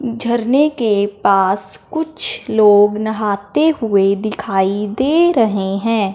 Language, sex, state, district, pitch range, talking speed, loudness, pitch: Hindi, male, Punjab, Fazilka, 200-240 Hz, 105 wpm, -15 LUFS, 210 Hz